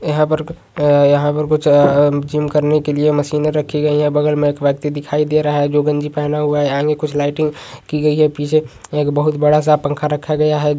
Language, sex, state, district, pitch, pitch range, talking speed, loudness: Hindi, male, Uttar Pradesh, Varanasi, 150 Hz, 145-150 Hz, 235 wpm, -16 LUFS